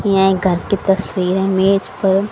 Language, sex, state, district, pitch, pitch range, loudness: Hindi, female, Haryana, Jhajjar, 195 Hz, 190-195 Hz, -16 LUFS